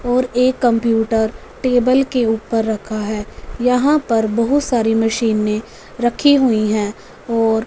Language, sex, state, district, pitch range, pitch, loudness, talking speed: Hindi, female, Punjab, Fazilka, 220-250 Hz, 230 Hz, -17 LUFS, 135 wpm